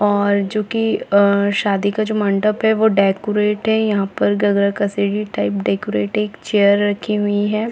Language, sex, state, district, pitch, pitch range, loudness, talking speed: Hindi, female, Chhattisgarh, Bilaspur, 205 Hz, 200-210 Hz, -17 LUFS, 185 wpm